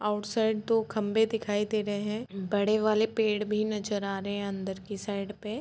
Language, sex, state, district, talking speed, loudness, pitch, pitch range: Hindi, female, Uttar Pradesh, Etah, 215 wpm, -29 LUFS, 210 Hz, 205-215 Hz